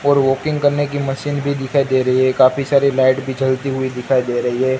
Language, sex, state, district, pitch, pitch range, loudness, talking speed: Hindi, male, Gujarat, Gandhinagar, 135 Hz, 130-140 Hz, -17 LUFS, 250 wpm